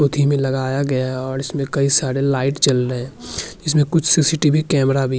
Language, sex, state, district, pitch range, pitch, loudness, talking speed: Hindi, male, Uttarakhand, Tehri Garhwal, 130-145 Hz, 135 Hz, -18 LUFS, 220 wpm